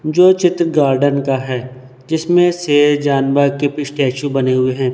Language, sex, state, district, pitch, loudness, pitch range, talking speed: Hindi, male, Madhya Pradesh, Dhar, 145 Hz, -15 LUFS, 135-155 Hz, 170 wpm